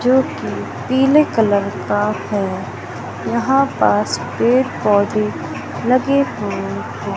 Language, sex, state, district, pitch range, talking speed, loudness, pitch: Hindi, male, Madhya Pradesh, Katni, 200-260 Hz, 100 wpm, -18 LUFS, 215 Hz